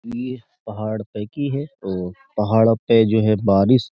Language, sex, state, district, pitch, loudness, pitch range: Hindi, male, Uttar Pradesh, Jyotiba Phule Nagar, 110 Hz, -20 LUFS, 105-130 Hz